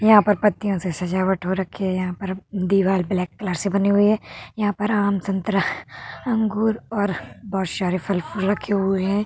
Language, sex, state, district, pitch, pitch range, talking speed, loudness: Hindi, female, Uttar Pradesh, Hamirpur, 195 Hz, 190-205 Hz, 190 wpm, -22 LUFS